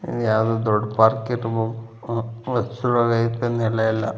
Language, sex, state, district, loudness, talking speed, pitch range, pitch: Kannada, male, Karnataka, Mysore, -22 LUFS, 100 wpm, 110-115 Hz, 115 Hz